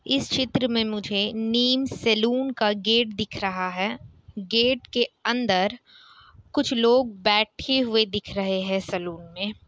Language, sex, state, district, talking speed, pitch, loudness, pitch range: Hindi, female, Bihar, Kishanganj, 145 wpm, 220 Hz, -23 LUFS, 200-245 Hz